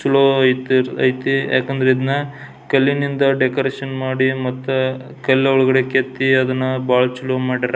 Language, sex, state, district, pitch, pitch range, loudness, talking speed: Kannada, male, Karnataka, Belgaum, 130 Hz, 130-135 Hz, -17 LUFS, 125 wpm